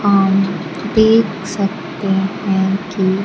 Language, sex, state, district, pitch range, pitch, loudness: Hindi, female, Bihar, Kaimur, 190-200 Hz, 195 Hz, -16 LUFS